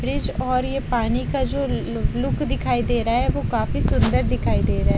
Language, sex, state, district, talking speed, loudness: Hindi, female, Haryana, Jhajjar, 230 wpm, -21 LUFS